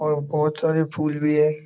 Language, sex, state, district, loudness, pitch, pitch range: Hindi, male, Bihar, East Champaran, -22 LUFS, 150 Hz, 150-155 Hz